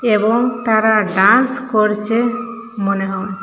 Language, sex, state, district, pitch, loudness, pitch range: Bengali, female, Assam, Hailakandi, 220 Hz, -15 LUFS, 205-240 Hz